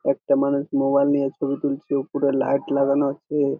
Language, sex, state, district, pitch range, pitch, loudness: Bengali, male, West Bengal, Jhargram, 140-145 Hz, 140 Hz, -22 LUFS